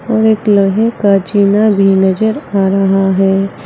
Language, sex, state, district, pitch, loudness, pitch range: Hindi, female, Uttar Pradesh, Saharanpur, 200 Hz, -11 LUFS, 195-215 Hz